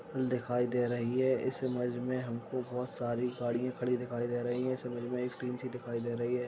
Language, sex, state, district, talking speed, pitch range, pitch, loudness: Hindi, male, Uttar Pradesh, Hamirpur, 240 wpm, 120-125 Hz, 125 Hz, -35 LUFS